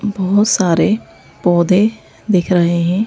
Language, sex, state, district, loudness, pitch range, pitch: Hindi, female, Madhya Pradesh, Bhopal, -14 LUFS, 175-210 Hz, 190 Hz